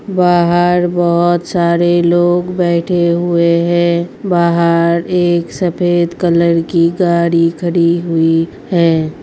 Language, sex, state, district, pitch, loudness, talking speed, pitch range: Hindi, female, Uttar Pradesh, Gorakhpur, 170 Hz, -13 LUFS, 105 wpm, 170-175 Hz